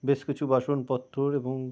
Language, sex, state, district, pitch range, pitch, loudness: Bengali, male, West Bengal, Jalpaiguri, 130-140 Hz, 135 Hz, -28 LUFS